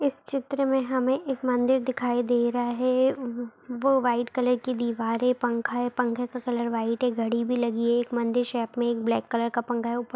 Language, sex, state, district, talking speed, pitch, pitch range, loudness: Hindi, female, Bihar, Madhepura, 215 wpm, 245 Hz, 235-255 Hz, -26 LUFS